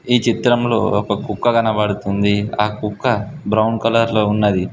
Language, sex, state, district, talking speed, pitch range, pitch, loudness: Telugu, male, Telangana, Mahabubabad, 140 wpm, 105-115 Hz, 105 Hz, -17 LUFS